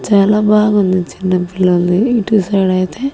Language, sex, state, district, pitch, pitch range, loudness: Telugu, female, Andhra Pradesh, Annamaya, 195 Hz, 185-210 Hz, -13 LUFS